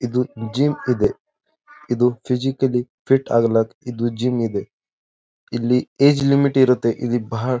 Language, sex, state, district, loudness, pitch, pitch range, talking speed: Kannada, male, Karnataka, Bijapur, -20 LUFS, 125 Hz, 120-135 Hz, 125 wpm